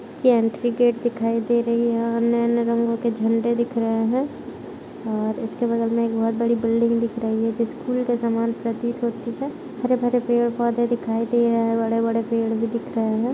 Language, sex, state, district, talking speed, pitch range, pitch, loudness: Hindi, female, Uttar Pradesh, Muzaffarnagar, 200 wpm, 230-240 Hz, 235 Hz, -22 LUFS